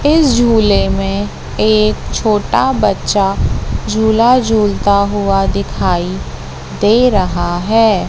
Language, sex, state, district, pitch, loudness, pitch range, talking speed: Hindi, female, Madhya Pradesh, Katni, 205 Hz, -13 LUFS, 185-225 Hz, 95 wpm